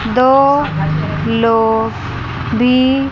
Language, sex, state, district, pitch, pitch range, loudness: Hindi, female, Chandigarh, Chandigarh, 225 Hz, 155-260 Hz, -14 LUFS